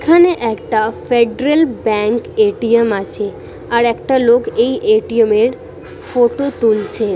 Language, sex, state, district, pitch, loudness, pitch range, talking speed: Bengali, female, West Bengal, Purulia, 235 Hz, -14 LUFS, 220-260 Hz, 115 wpm